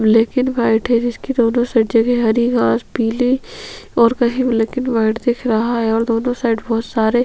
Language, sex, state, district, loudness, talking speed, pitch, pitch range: Hindi, female, Chhattisgarh, Sukma, -16 LUFS, 205 wpm, 235 Hz, 225-245 Hz